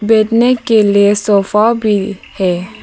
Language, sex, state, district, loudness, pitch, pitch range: Hindi, female, Arunachal Pradesh, Papum Pare, -12 LUFS, 210 Hz, 200-225 Hz